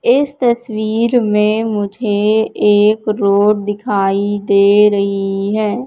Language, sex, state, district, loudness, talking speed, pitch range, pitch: Hindi, female, Madhya Pradesh, Katni, -14 LUFS, 100 wpm, 200-220 Hz, 210 Hz